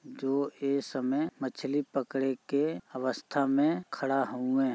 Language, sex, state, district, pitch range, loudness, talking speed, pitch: Bhojpuri, male, Uttar Pradesh, Gorakhpur, 130-140 Hz, -31 LUFS, 140 wpm, 135 Hz